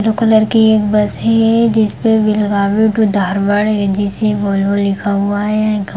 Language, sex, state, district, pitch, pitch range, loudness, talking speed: Hindi, female, Bihar, Sitamarhi, 210 Hz, 200-220 Hz, -13 LUFS, 150 wpm